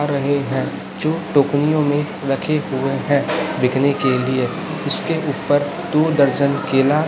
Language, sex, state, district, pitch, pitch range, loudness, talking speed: Hindi, male, Chhattisgarh, Raipur, 145 Hz, 135-155 Hz, -18 LUFS, 135 wpm